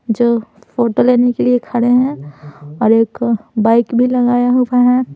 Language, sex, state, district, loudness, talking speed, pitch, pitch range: Hindi, female, Bihar, Patna, -14 LUFS, 165 wpm, 240 Hz, 225-245 Hz